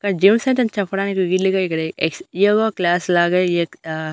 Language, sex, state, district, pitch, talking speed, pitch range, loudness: Telugu, female, Andhra Pradesh, Annamaya, 190 Hz, 190 wpm, 175-205 Hz, -18 LUFS